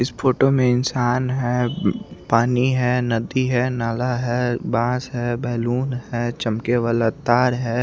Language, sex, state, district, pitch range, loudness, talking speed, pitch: Hindi, male, Chandigarh, Chandigarh, 120-125 Hz, -21 LUFS, 145 wpm, 125 Hz